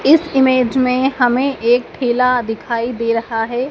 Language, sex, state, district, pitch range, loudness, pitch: Hindi, female, Madhya Pradesh, Dhar, 235-260 Hz, -16 LUFS, 250 Hz